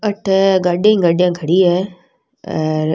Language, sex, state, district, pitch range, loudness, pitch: Rajasthani, female, Rajasthan, Nagaur, 170-195 Hz, -15 LUFS, 180 Hz